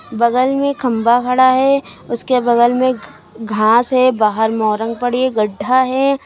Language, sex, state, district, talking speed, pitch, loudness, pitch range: Hindi, female, Uttar Pradesh, Lucknow, 155 wpm, 245 Hz, -15 LUFS, 225-255 Hz